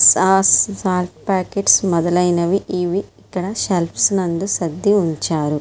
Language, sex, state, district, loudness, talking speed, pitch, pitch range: Telugu, female, Andhra Pradesh, Srikakulam, -17 LUFS, 105 wpm, 185 Hz, 170-195 Hz